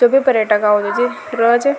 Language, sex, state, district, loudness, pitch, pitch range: Rajasthani, female, Rajasthan, Nagaur, -15 LUFS, 235 Hz, 210-255 Hz